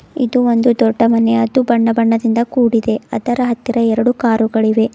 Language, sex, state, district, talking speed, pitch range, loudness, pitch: Kannada, female, Karnataka, Bidar, 160 wpm, 225-245 Hz, -14 LUFS, 230 Hz